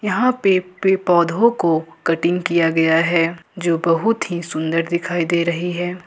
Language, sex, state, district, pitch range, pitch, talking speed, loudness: Hindi, female, Jharkhand, Ranchi, 165-180 Hz, 170 Hz, 170 wpm, -18 LUFS